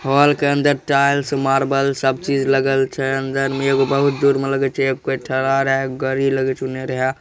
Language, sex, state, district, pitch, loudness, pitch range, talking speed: Hindi, male, Bihar, Begusarai, 135 Hz, -18 LUFS, 135-140 Hz, 225 wpm